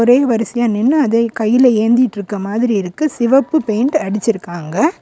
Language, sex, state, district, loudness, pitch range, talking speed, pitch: Tamil, female, Tamil Nadu, Kanyakumari, -15 LUFS, 215-255 Hz, 130 wpm, 235 Hz